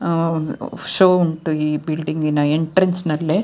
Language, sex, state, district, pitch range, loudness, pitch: Kannada, female, Karnataka, Dakshina Kannada, 155-180 Hz, -19 LUFS, 160 Hz